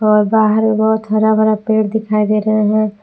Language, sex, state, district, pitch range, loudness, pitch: Hindi, female, Jharkhand, Palamu, 215-220 Hz, -14 LUFS, 215 Hz